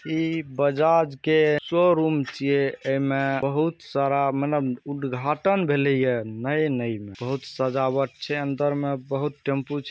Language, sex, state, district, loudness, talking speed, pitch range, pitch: Hindi, male, Bihar, Saharsa, -24 LUFS, 140 wpm, 135-150 Hz, 140 Hz